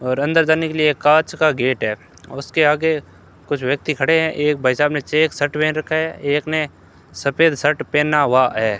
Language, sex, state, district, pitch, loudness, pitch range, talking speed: Hindi, male, Rajasthan, Bikaner, 150 Hz, -18 LUFS, 130-155 Hz, 220 wpm